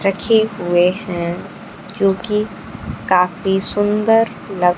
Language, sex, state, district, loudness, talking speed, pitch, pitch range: Hindi, female, Bihar, Kaimur, -17 LUFS, 90 wpm, 195 Hz, 180-210 Hz